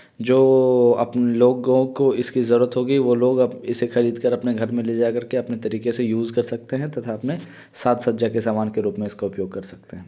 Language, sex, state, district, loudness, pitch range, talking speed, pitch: Hindi, male, Uttar Pradesh, Varanasi, -20 LUFS, 115-125 Hz, 240 wpm, 120 Hz